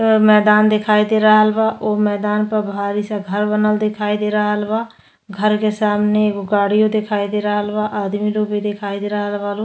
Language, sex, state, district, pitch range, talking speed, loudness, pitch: Bhojpuri, female, Uttar Pradesh, Deoria, 205-215 Hz, 210 wpm, -17 LUFS, 210 Hz